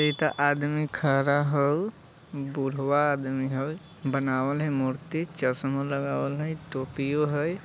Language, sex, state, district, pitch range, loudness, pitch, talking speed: Bajjika, male, Bihar, Vaishali, 135-150 Hz, -27 LUFS, 145 Hz, 125 wpm